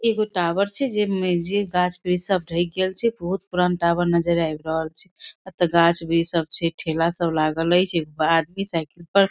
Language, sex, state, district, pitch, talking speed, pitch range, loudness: Maithili, female, Bihar, Darbhanga, 175 Hz, 225 wpm, 165-190 Hz, -22 LUFS